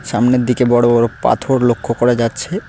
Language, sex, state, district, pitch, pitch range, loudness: Bengali, male, West Bengal, Cooch Behar, 120 Hz, 120-125 Hz, -14 LUFS